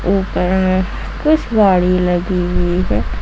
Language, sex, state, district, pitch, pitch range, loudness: Hindi, female, Jharkhand, Ranchi, 180 Hz, 180-190 Hz, -16 LUFS